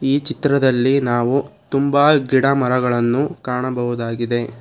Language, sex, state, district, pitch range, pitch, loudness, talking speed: Kannada, male, Karnataka, Bangalore, 120-140 Hz, 130 Hz, -18 LUFS, 80 wpm